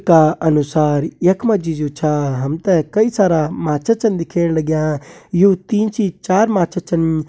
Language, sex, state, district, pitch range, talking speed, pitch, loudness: Kumaoni, male, Uttarakhand, Uttarkashi, 155-195 Hz, 155 wpm, 170 Hz, -16 LUFS